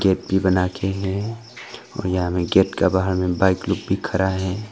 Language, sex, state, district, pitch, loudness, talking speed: Hindi, male, Arunachal Pradesh, Longding, 95 Hz, -21 LUFS, 205 wpm